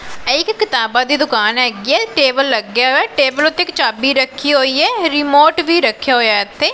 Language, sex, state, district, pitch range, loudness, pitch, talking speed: Punjabi, female, Punjab, Pathankot, 255-310 Hz, -13 LUFS, 280 Hz, 195 wpm